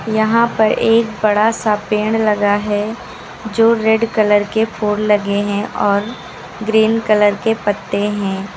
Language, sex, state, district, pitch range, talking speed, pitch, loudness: Hindi, female, Uttar Pradesh, Lucknow, 205-225 Hz, 145 wpm, 215 Hz, -15 LUFS